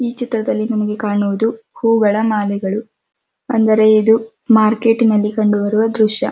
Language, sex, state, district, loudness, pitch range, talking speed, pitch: Kannada, female, Karnataka, Dharwad, -15 LUFS, 210-225 Hz, 115 wpm, 220 Hz